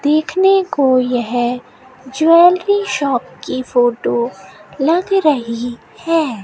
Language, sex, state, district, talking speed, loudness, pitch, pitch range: Hindi, female, Rajasthan, Bikaner, 95 wpm, -15 LUFS, 260 Hz, 240-330 Hz